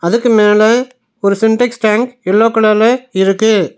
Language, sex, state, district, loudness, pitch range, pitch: Tamil, male, Tamil Nadu, Nilgiris, -12 LUFS, 210-235 Hz, 220 Hz